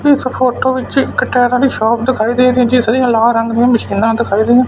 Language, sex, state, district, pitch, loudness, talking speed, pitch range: Punjabi, male, Punjab, Fazilka, 245 Hz, -13 LUFS, 245 wpm, 230-255 Hz